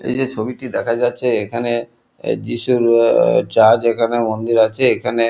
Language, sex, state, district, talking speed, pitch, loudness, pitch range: Bengali, male, West Bengal, Kolkata, 125 wpm, 115 Hz, -16 LUFS, 115-120 Hz